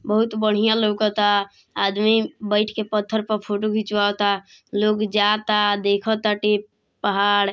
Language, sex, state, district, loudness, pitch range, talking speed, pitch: Bhojpuri, female, Bihar, East Champaran, -21 LUFS, 205-215 Hz, 110 wpm, 210 Hz